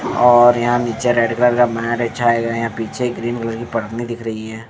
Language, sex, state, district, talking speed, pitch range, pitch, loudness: Hindi, male, Punjab, Fazilka, 240 wpm, 115-120 Hz, 115 Hz, -17 LUFS